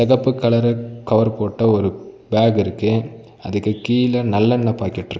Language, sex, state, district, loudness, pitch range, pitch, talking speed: Tamil, male, Tamil Nadu, Nilgiris, -18 LUFS, 105-120 Hz, 110 Hz, 140 wpm